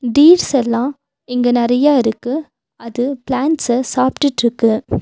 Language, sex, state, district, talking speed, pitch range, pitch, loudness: Tamil, female, Tamil Nadu, Nilgiris, 85 wpm, 240-280 Hz, 250 Hz, -15 LUFS